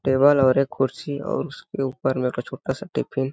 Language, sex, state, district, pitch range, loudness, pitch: Hindi, male, Chhattisgarh, Balrampur, 130-135 Hz, -23 LUFS, 135 Hz